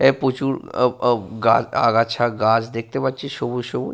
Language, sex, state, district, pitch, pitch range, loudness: Bengali, male, Jharkhand, Sahebganj, 120 Hz, 115-130 Hz, -20 LUFS